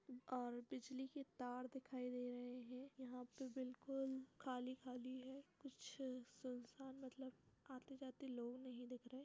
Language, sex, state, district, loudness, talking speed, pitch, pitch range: Hindi, female, Uttar Pradesh, Etah, -52 LUFS, 150 wpm, 255 Hz, 250-265 Hz